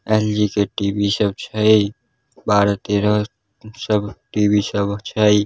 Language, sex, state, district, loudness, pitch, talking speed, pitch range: Hindi, male, Bihar, Darbhanga, -19 LUFS, 105 Hz, 120 wpm, 100-110 Hz